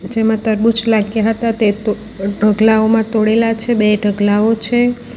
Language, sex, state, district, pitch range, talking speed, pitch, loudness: Gujarati, female, Gujarat, Valsad, 210-225 Hz, 150 wpm, 220 Hz, -14 LUFS